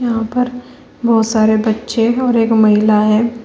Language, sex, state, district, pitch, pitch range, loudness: Hindi, female, Uttar Pradesh, Shamli, 225 Hz, 220-240 Hz, -14 LUFS